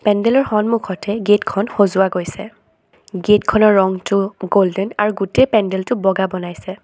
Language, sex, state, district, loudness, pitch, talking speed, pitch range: Assamese, female, Assam, Sonitpur, -16 LUFS, 200 Hz, 130 wpm, 190-215 Hz